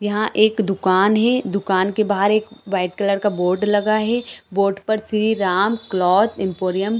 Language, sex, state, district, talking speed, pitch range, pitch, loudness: Hindi, female, Chhattisgarh, Bilaspur, 170 wpm, 190-215 Hz, 205 Hz, -19 LUFS